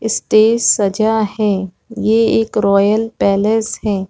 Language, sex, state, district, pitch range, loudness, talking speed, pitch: Hindi, female, Chhattisgarh, Rajnandgaon, 200-225 Hz, -14 LUFS, 115 wpm, 215 Hz